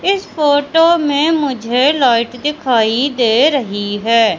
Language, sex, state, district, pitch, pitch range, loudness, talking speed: Hindi, female, Madhya Pradesh, Katni, 270 Hz, 230-300 Hz, -14 LUFS, 125 wpm